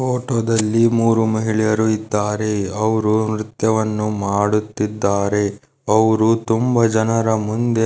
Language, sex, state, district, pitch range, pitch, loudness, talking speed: Kannada, male, Karnataka, Dharwad, 105-115 Hz, 110 Hz, -18 LUFS, 85 wpm